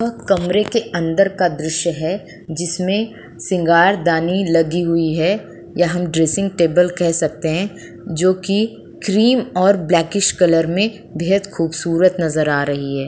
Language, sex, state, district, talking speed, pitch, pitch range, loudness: Hindi, female, Uttar Pradesh, Budaun, 140 wpm, 175 Hz, 165-195 Hz, -17 LUFS